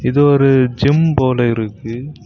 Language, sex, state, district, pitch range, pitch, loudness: Tamil, male, Tamil Nadu, Kanyakumari, 120-145 Hz, 130 Hz, -14 LUFS